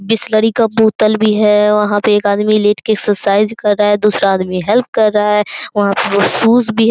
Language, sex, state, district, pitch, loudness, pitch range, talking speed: Hindi, female, Bihar, Araria, 210 Hz, -12 LUFS, 205-220 Hz, 225 wpm